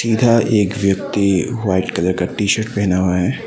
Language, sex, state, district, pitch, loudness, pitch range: Hindi, male, Assam, Sonitpur, 100 Hz, -17 LUFS, 95-110 Hz